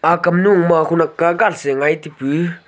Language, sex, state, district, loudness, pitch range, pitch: Wancho, male, Arunachal Pradesh, Longding, -15 LUFS, 155-175 Hz, 165 Hz